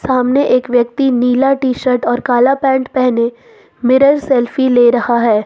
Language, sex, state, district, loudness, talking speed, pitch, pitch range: Hindi, female, Jharkhand, Ranchi, -13 LUFS, 165 wpm, 255 Hz, 245-270 Hz